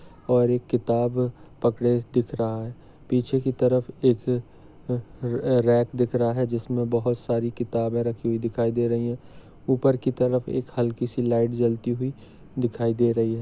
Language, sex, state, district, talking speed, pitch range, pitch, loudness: Hindi, male, Maharashtra, Sindhudurg, 175 wpm, 120-125 Hz, 120 Hz, -25 LUFS